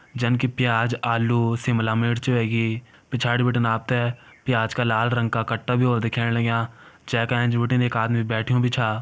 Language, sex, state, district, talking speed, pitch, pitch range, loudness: Hindi, male, Uttarakhand, Uttarkashi, 180 wpm, 120 Hz, 115-125 Hz, -22 LUFS